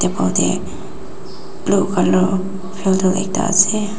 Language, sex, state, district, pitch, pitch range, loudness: Nagamese, female, Nagaland, Dimapur, 190 Hz, 185-200 Hz, -17 LUFS